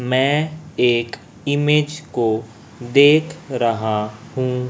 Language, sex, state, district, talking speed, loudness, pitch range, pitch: Hindi, male, Chhattisgarh, Raipur, 90 wpm, -19 LUFS, 115-150 Hz, 130 Hz